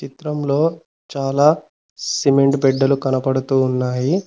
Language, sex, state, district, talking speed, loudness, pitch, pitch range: Telugu, male, Telangana, Mahabubabad, 85 wpm, -18 LUFS, 140 Hz, 130-150 Hz